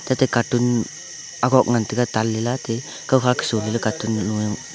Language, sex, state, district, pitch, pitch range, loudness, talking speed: Wancho, male, Arunachal Pradesh, Longding, 120 Hz, 110-125 Hz, -21 LUFS, 165 wpm